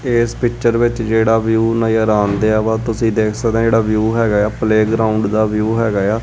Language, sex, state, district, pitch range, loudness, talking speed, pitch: Punjabi, male, Punjab, Kapurthala, 110-115 Hz, -15 LUFS, 195 wpm, 110 Hz